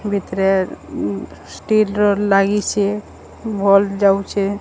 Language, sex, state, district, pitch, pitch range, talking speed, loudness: Odia, female, Odisha, Sambalpur, 200 Hz, 195-205 Hz, 90 wpm, -17 LUFS